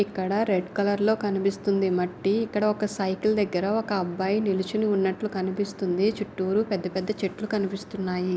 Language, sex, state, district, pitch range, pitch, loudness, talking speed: Telugu, female, Karnataka, Raichur, 190-210 Hz, 200 Hz, -26 LUFS, 145 wpm